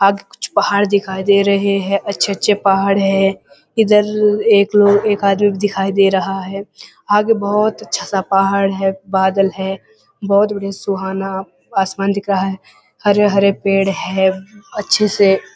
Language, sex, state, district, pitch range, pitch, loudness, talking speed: Hindi, male, Uttarakhand, Uttarkashi, 195-205 Hz, 195 Hz, -15 LUFS, 150 wpm